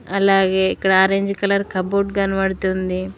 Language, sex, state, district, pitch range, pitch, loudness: Telugu, female, Telangana, Mahabubabad, 190-195 Hz, 195 Hz, -18 LUFS